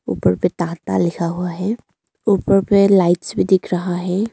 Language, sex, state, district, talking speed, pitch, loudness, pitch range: Hindi, female, Arunachal Pradesh, Longding, 180 wpm, 180 Hz, -18 LUFS, 175-195 Hz